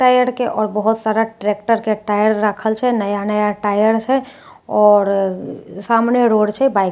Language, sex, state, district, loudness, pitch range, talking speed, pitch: Maithili, female, Bihar, Katihar, -16 LUFS, 210-230 Hz, 175 wpm, 215 Hz